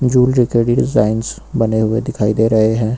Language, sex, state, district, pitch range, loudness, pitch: Hindi, male, Uttar Pradesh, Lucknow, 110-125 Hz, -15 LUFS, 115 Hz